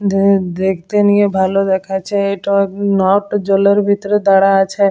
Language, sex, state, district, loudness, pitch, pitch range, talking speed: Bengali, female, West Bengal, Jalpaiguri, -14 LUFS, 195 Hz, 195-200 Hz, 135 wpm